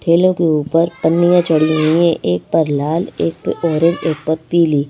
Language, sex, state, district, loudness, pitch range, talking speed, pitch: Hindi, female, Madhya Pradesh, Bhopal, -15 LUFS, 155-170 Hz, 210 wpm, 160 Hz